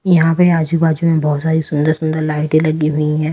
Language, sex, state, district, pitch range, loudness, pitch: Hindi, female, Delhi, New Delhi, 155-165 Hz, -15 LUFS, 155 Hz